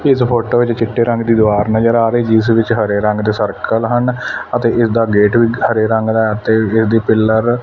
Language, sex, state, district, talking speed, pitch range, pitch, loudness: Punjabi, male, Punjab, Fazilka, 220 wpm, 110-120 Hz, 115 Hz, -13 LUFS